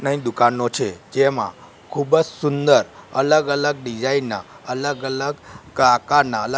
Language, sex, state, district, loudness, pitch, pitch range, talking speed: Gujarati, male, Gujarat, Gandhinagar, -20 LUFS, 140 Hz, 125-145 Hz, 120 wpm